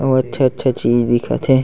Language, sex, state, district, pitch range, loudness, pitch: Chhattisgarhi, male, Chhattisgarh, Sarguja, 120-130 Hz, -16 LUFS, 130 Hz